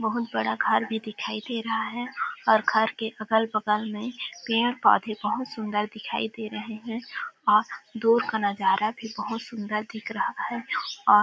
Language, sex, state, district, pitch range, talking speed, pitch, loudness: Hindi, female, Chhattisgarh, Balrampur, 215-230 Hz, 185 wpm, 220 Hz, -26 LUFS